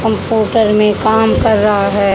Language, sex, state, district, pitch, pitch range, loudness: Hindi, female, Haryana, Charkhi Dadri, 215 Hz, 205-220 Hz, -12 LUFS